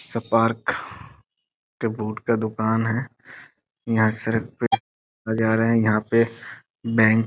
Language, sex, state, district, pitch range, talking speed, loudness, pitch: Hindi, male, Bihar, Sitamarhi, 110-115 Hz, 125 wpm, -21 LUFS, 115 Hz